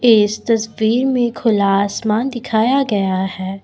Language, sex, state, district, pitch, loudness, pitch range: Hindi, female, Assam, Kamrup Metropolitan, 220 Hz, -17 LUFS, 200-240 Hz